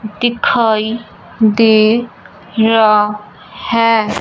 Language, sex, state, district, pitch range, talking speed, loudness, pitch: Hindi, male, Punjab, Fazilka, 215-230 Hz, 55 wpm, -13 LUFS, 220 Hz